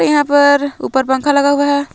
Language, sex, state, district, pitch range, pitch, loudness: Hindi, female, Jharkhand, Palamu, 280-285 Hz, 285 Hz, -13 LUFS